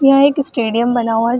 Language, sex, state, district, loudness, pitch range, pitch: Hindi, female, Bihar, Samastipur, -15 LUFS, 230-275 Hz, 240 Hz